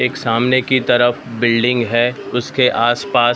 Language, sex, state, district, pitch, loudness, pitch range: Hindi, male, Maharashtra, Mumbai Suburban, 120 Hz, -15 LUFS, 120-125 Hz